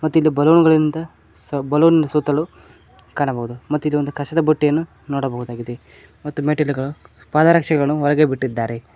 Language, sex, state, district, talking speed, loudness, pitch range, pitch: Kannada, male, Karnataka, Koppal, 115 wpm, -18 LUFS, 135-155 Hz, 150 Hz